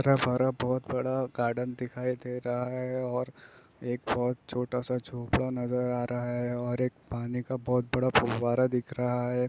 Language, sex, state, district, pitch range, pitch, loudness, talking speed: Hindi, male, Bihar, East Champaran, 120-125 Hz, 125 Hz, -30 LUFS, 190 wpm